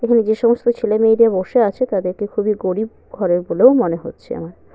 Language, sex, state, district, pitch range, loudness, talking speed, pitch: Bengali, female, West Bengal, Paschim Medinipur, 185-235 Hz, -16 LUFS, 190 wpm, 215 Hz